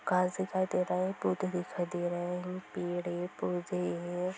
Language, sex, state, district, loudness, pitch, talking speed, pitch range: Hindi, female, Bihar, Sitamarhi, -34 LUFS, 180 Hz, 205 wpm, 175-185 Hz